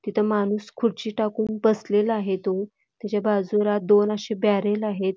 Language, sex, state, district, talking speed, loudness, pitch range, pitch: Marathi, female, Karnataka, Belgaum, 150 wpm, -23 LUFS, 205-215 Hz, 210 Hz